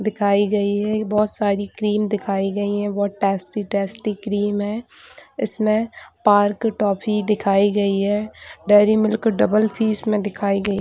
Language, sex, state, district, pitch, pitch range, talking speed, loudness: Hindi, female, Chhattisgarh, Raigarh, 205 Hz, 200-215 Hz, 155 wpm, -20 LUFS